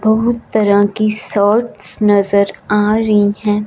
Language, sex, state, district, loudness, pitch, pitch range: Hindi, female, Punjab, Fazilka, -14 LUFS, 210 Hz, 205-220 Hz